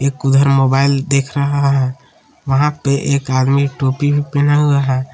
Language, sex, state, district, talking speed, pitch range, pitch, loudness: Hindi, male, Jharkhand, Palamu, 165 wpm, 135-140 Hz, 140 Hz, -15 LUFS